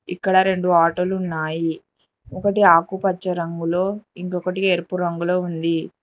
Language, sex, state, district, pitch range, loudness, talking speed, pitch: Telugu, female, Telangana, Hyderabad, 165-185 Hz, -20 LUFS, 100 wpm, 180 Hz